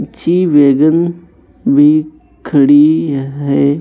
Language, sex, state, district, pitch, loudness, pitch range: Hindi, female, Chhattisgarh, Raipur, 150 Hz, -11 LUFS, 140-160 Hz